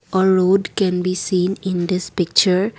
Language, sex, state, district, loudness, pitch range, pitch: English, female, Assam, Kamrup Metropolitan, -18 LUFS, 180-190 Hz, 185 Hz